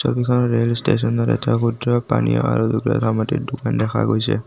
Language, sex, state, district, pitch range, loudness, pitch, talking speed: Assamese, male, Assam, Kamrup Metropolitan, 110-125 Hz, -19 LUFS, 115 Hz, 120 wpm